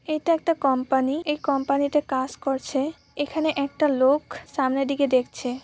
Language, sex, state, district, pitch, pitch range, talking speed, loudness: Bengali, female, West Bengal, Purulia, 280 Hz, 265-295 Hz, 160 wpm, -24 LUFS